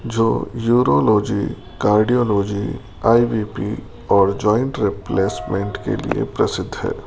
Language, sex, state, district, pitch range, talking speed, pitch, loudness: Hindi, male, Rajasthan, Jaipur, 100-115 Hz, 95 wpm, 105 Hz, -19 LUFS